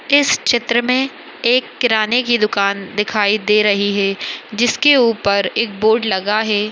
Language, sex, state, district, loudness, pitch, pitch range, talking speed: Hindi, male, Bihar, Madhepura, -16 LUFS, 215 Hz, 205-240 Hz, 150 wpm